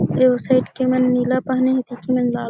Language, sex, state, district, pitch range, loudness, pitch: Chhattisgarhi, female, Chhattisgarh, Jashpur, 245-255 Hz, -18 LUFS, 255 Hz